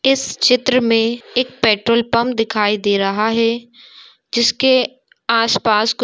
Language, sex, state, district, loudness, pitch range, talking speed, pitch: Hindi, female, West Bengal, Dakshin Dinajpur, -16 LUFS, 225-250 Hz, 130 wpm, 230 Hz